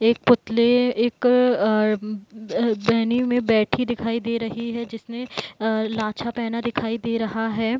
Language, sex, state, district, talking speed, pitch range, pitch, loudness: Hindi, female, Bihar, Gopalganj, 140 wpm, 220-240 Hz, 230 Hz, -22 LUFS